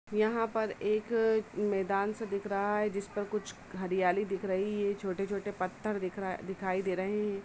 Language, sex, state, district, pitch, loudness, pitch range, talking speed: Hindi, female, Uttar Pradesh, Jalaun, 200 Hz, -33 LUFS, 195-210 Hz, 195 wpm